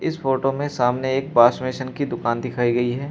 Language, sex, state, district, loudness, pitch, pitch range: Hindi, male, Uttar Pradesh, Shamli, -21 LUFS, 130 Hz, 120-135 Hz